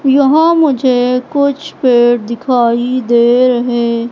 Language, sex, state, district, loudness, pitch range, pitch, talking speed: Hindi, female, Madhya Pradesh, Katni, -11 LUFS, 240-275 Hz, 250 Hz, 100 wpm